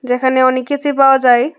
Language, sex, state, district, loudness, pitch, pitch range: Bengali, female, Tripura, West Tripura, -12 LUFS, 260 Hz, 255-275 Hz